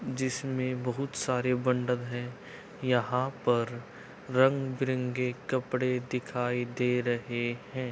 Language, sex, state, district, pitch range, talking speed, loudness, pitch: Hindi, male, Uttar Pradesh, Budaun, 120-130 Hz, 100 wpm, -30 LUFS, 125 Hz